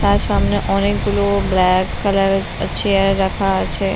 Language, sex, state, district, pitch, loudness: Bengali, female, West Bengal, Purulia, 190 Hz, -16 LUFS